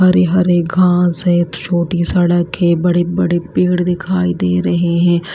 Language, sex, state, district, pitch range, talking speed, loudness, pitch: Hindi, female, Himachal Pradesh, Shimla, 170-180 Hz, 135 wpm, -14 LUFS, 175 Hz